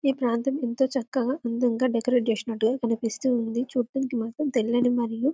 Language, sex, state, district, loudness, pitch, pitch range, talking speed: Telugu, female, Telangana, Karimnagar, -26 LUFS, 245 Hz, 230-260 Hz, 145 wpm